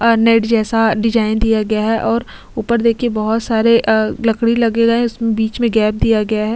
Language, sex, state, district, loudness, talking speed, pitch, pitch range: Hindi, female, Chhattisgarh, Sukma, -15 LUFS, 210 wpm, 225 Hz, 220-230 Hz